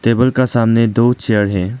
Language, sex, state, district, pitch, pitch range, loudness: Hindi, male, Arunachal Pradesh, Lower Dibang Valley, 115 Hz, 110-125 Hz, -14 LUFS